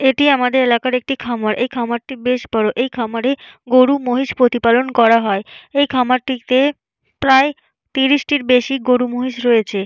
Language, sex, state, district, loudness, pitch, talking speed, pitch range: Bengali, female, West Bengal, Jalpaiguri, -16 LUFS, 250 Hz, 150 wpm, 235-265 Hz